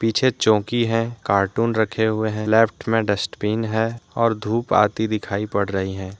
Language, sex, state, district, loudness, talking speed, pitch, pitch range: Hindi, male, Jharkhand, Deoghar, -21 LUFS, 165 wpm, 110 Hz, 105-115 Hz